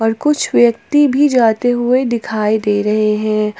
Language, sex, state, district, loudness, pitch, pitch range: Hindi, female, Jharkhand, Palamu, -14 LUFS, 225 Hz, 215-250 Hz